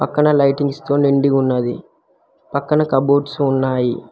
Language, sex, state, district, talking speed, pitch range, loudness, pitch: Telugu, male, Telangana, Hyderabad, 115 wpm, 135-145 Hz, -17 LUFS, 140 Hz